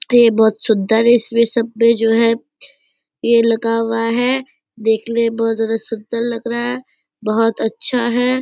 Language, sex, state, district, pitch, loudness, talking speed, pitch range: Hindi, female, Bihar, Purnia, 230 Hz, -16 LUFS, 170 wpm, 225-240 Hz